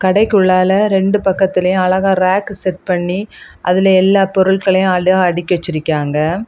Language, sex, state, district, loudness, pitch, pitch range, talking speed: Tamil, female, Tamil Nadu, Kanyakumari, -13 LUFS, 185 Hz, 180-195 Hz, 120 wpm